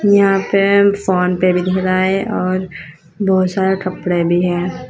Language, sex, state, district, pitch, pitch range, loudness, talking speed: Hindi, female, Uttar Pradesh, Shamli, 185 Hz, 180-195 Hz, -15 LUFS, 170 wpm